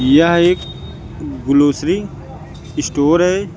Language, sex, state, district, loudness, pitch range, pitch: Hindi, female, Uttar Pradesh, Lucknow, -15 LUFS, 140-170 Hz, 150 Hz